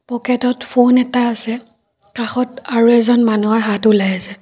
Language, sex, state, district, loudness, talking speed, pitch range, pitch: Assamese, female, Assam, Kamrup Metropolitan, -15 LUFS, 165 wpm, 220-245 Hz, 235 Hz